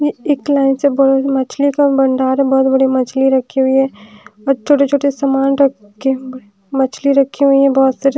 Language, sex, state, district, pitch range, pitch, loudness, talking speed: Hindi, female, Haryana, Rohtak, 260-275 Hz, 270 Hz, -14 LUFS, 190 wpm